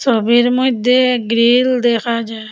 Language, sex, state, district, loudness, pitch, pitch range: Bengali, female, Assam, Hailakandi, -14 LUFS, 240 Hz, 230-250 Hz